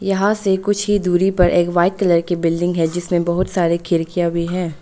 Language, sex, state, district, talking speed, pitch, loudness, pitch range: Hindi, female, Arunachal Pradesh, Longding, 225 wpm, 175 Hz, -17 LUFS, 170-190 Hz